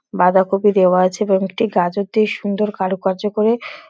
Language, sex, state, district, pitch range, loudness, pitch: Bengali, female, West Bengal, Dakshin Dinajpur, 190-215 Hz, -17 LUFS, 200 Hz